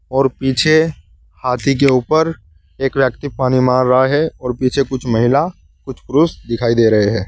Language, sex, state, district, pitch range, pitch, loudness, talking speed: Hindi, male, Uttar Pradesh, Saharanpur, 115-135 Hz, 130 Hz, -15 LUFS, 175 wpm